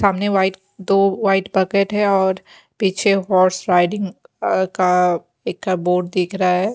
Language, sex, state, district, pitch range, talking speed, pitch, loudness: Hindi, female, Haryana, Jhajjar, 180-195 Hz, 150 wpm, 190 Hz, -18 LUFS